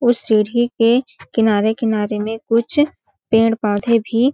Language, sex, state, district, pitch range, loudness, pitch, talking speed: Hindi, female, Chhattisgarh, Balrampur, 215-240 Hz, -17 LUFS, 225 Hz, 110 wpm